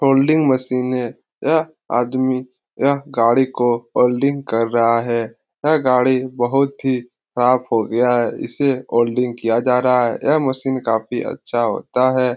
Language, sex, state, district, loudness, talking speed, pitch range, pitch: Hindi, male, Bihar, Lakhisarai, -18 LUFS, 155 wpm, 120-135 Hz, 125 Hz